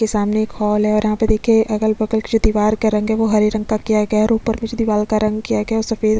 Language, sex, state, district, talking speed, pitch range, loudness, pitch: Hindi, female, Chhattisgarh, Sukma, 360 wpm, 215-220 Hz, -17 LUFS, 215 Hz